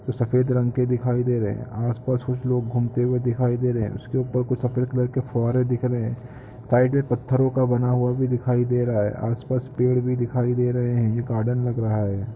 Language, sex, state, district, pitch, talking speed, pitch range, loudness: Hindi, male, Uttarakhand, Tehri Garhwal, 125 Hz, 245 wpm, 120-125 Hz, -23 LUFS